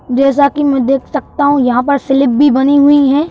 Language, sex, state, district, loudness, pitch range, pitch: Hindi, male, Madhya Pradesh, Bhopal, -11 LUFS, 270-285 Hz, 280 Hz